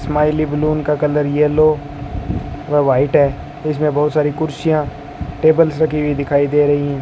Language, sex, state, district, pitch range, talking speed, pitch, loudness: Hindi, male, Rajasthan, Bikaner, 145-155 Hz, 160 wpm, 150 Hz, -16 LUFS